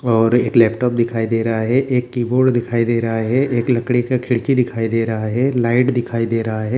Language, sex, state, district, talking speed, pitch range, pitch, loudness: Hindi, male, Bihar, Jamui, 240 wpm, 115-125 Hz, 120 Hz, -17 LUFS